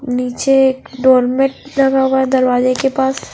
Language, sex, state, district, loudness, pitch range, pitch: Hindi, female, Punjab, Fazilka, -14 LUFS, 255-270 Hz, 265 Hz